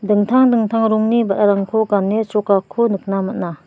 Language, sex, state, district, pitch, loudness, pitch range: Garo, female, Meghalaya, West Garo Hills, 210 Hz, -16 LUFS, 200-225 Hz